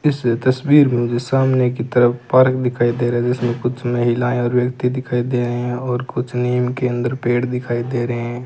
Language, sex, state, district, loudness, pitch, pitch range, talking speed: Hindi, male, Rajasthan, Bikaner, -18 LUFS, 125 Hz, 120-125 Hz, 220 wpm